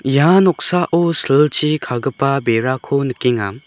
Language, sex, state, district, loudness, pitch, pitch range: Garo, male, Meghalaya, South Garo Hills, -16 LUFS, 140 Hz, 130-165 Hz